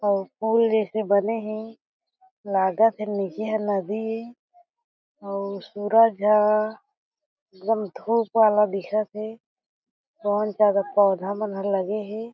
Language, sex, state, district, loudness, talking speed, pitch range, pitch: Chhattisgarhi, female, Chhattisgarh, Jashpur, -23 LUFS, 125 wpm, 205-225 Hz, 215 Hz